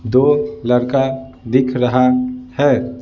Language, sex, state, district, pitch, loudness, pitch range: Hindi, male, Bihar, Patna, 130 Hz, -16 LUFS, 125-135 Hz